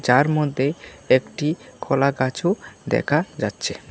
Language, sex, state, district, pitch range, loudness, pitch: Bengali, male, Tripura, West Tripura, 130-155 Hz, -22 LUFS, 140 Hz